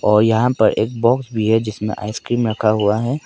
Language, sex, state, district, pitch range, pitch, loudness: Hindi, male, Arunachal Pradesh, Papum Pare, 110-120 Hz, 110 Hz, -17 LUFS